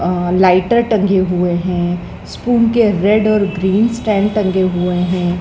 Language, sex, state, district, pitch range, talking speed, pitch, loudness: Hindi, female, Madhya Pradesh, Dhar, 180-215 Hz, 155 wpm, 190 Hz, -14 LUFS